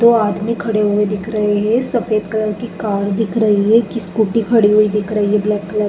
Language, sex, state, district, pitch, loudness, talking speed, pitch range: Hindi, female, Uttar Pradesh, Jalaun, 215 Hz, -16 LUFS, 235 wpm, 210-225 Hz